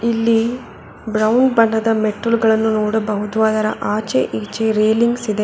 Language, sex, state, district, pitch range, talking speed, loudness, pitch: Kannada, female, Karnataka, Bangalore, 215-230 Hz, 110 wpm, -17 LUFS, 220 Hz